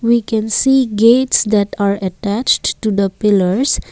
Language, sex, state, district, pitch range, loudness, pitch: English, female, Assam, Kamrup Metropolitan, 200-235 Hz, -14 LUFS, 215 Hz